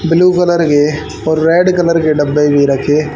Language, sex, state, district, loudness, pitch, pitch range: Hindi, male, Haryana, Rohtak, -11 LUFS, 155 Hz, 150-170 Hz